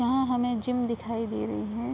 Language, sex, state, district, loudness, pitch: Hindi, female, Uttar Pradesh, Budaun, -29 LUFS, 235 Hz